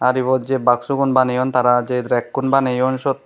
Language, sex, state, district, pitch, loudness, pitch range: Chakma, male, Tripura, Dhalai, 130 Hz, -18 LUFS, 125-135 Hz